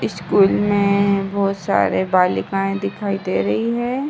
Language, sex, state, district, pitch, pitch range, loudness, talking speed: Hindi, female, Uttar Pradesh, Ghazipur, 195 Hz, 185-200 Hz, -18 LUFS, 145 wpm